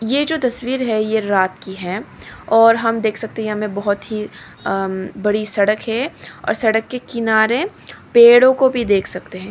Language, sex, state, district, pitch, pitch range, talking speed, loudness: Hindi, female, Nagaland, Dimapur, 220 Hz, 205-240 Hz, 190 wpm, -17 LUFS